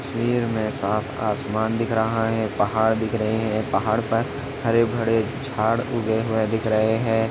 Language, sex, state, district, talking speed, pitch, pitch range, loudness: Hindi, male, Chhattisgarh, Balrampur, 170 wpm, 110 Hz, 110-115 Hz, -23 LUFS